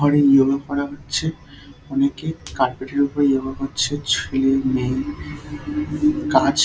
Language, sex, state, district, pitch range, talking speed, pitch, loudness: Bengali, male, West Bengal, Dakshin Dinajpur, 135-145 Hz, 115 wpm, 140 Hz, -20 LUFS